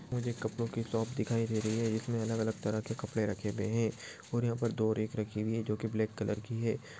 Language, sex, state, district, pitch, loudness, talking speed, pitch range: Hindi, male, Maharashtra, Dhule, 110 Hz, -35 LUFS, 255 wpm, 110-115 Hz